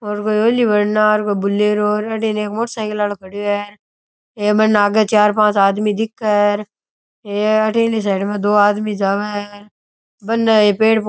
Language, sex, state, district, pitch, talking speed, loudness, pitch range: Rajasthani, male, Rajasthan, Churu, 210 Hz, 185 wpm, -16 LUFS, 205-215 Hz